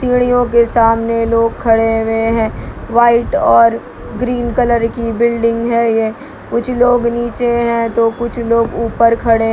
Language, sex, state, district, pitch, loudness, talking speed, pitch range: Hindi, male, Bihar, Kishanganj, 230 Hz, -13 LUFS, 155 wpm, 230-235 Hz